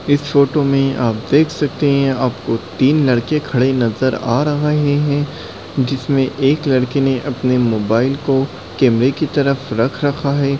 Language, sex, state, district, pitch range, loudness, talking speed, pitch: Hindi, male, Uttar Pradesh, Varanasi, 125-145 Hz, -16 LUFS, 160 wpm, 135 Hz